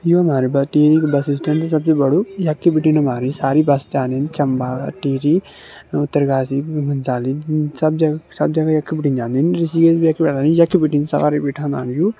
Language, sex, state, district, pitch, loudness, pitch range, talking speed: Kumaoni, male, Uttarakhand, Tehri Garhwal, 150 Hz, -17 LUFS, 140-160 Hz, 170 wpm